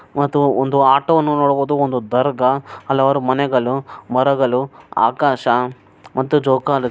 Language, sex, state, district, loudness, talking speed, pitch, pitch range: Kannada, male, Karnataka, Bellary, -17 LUFS, 120 wpm, 135 Hz, 125-140 Hz